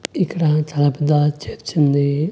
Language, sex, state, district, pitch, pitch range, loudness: Telugu, male, Andhra Pradesh, Annamaya, 150 Hz, 145-155 Hz, -18 LUFS